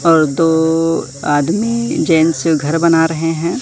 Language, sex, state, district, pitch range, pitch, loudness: Hindi, male, Madhya Pradesh, Katni, 160-165 Hz, 165 Hz, -14 LUFS